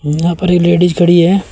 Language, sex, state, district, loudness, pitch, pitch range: Hindi, male, Uttar Pradesh, Shamli, -11 LUFS, 175 Hz, 170-180 Hz